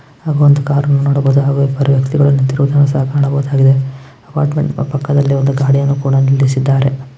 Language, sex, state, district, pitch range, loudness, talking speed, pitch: Kannada, male, Karnataka, Gulbarga, 135-140 Hz, -13 LUFS, 65 wpm, 140 Hz